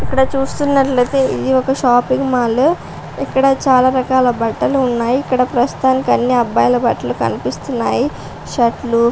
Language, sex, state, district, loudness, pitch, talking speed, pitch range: Telugu, female, Andhra Pradesh, Visakhapatnam, -15 LUFS, 255 Hz, 130 wpm, 245-265 Hz